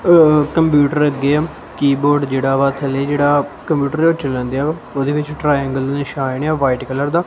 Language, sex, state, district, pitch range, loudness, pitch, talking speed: Punjabi, male, Punjab, Kapurthala, 135-150 Hz, -16 LUFS, 145 Hz, 175 wpm